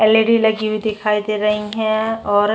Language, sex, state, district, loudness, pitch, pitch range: Hindi, female, Chhattisgarh, Bastar, -17 LUFS, 215 Hz, 210-220 Hz